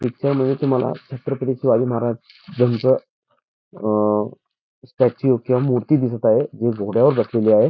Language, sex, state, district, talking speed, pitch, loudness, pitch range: Marathi, male, Karnataka, Belgaum, 110 wpm, 125 Hz, -19 LUFS, 115-130 Hz